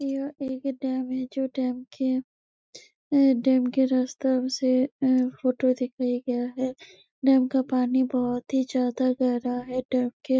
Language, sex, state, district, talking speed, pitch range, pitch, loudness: Hindi, female, Chhattisgarh, Bastar, 155 wpm, 255-265 Hz, 260 Hz, -25 LUFS